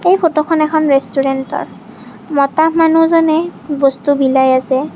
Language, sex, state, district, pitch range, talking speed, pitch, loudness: Assamese, female, Assam, Kamrup Metropolitan, 270-325 Hz, 110 wpm, 295 Hz, -13 LUFS